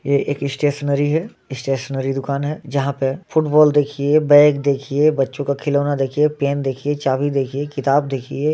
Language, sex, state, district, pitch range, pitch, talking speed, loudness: Hindi, male, Bihar, Muzaffarpur, 135-145 Hz, 140 Hz, 150 wpm, -18 LUFS